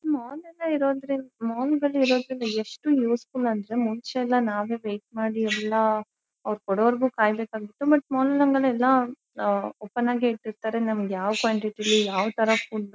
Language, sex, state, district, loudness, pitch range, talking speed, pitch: Kannada, female, Karnataka, Shimoga, -25 LUFS, 215-260 Hz, 155 wpm, 230 Hz